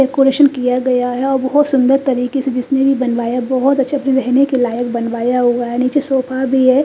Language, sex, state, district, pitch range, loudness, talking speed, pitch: Hindi, female, Chandigarh, Chandigarh, 250-270 Hz, -15 LUFS, 210 wpm, 260 Hz